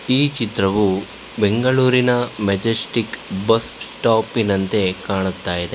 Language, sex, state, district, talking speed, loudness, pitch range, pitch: Kannada, male, Karnataka, Bangalore, 85 wpm, -18 LUFS, 95-120 Hz, 110 Hz